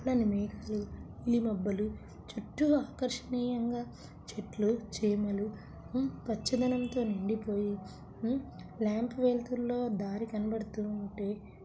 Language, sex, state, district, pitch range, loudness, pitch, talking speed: Telugu, female, Telangana, Nalgonda, 205-245 Hz, -34 LUFS, 225 Hz, 90 wpm